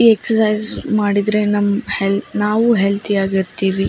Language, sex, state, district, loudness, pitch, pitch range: Kannada, female, Karnataka, Raichur, -16 LUFS, 205 Hz, 200-215 Hz